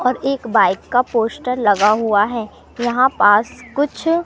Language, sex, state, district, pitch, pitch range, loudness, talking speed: Hindi, male, Madhya Pradesh, Katni, 240 Hz, 215-260 Hz, -17 LUFS, 155 wpm